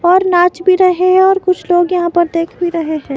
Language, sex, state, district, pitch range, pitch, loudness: Hindi, female, Himachal Pradesh, Shimla, 345-365 Hz, 355 Hz, -12 LUFS